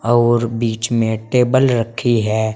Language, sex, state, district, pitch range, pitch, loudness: Hindi, male, Uttar Pradesh, Saharanpur, 110-120 Hz, 115 Hz, -16 LUFS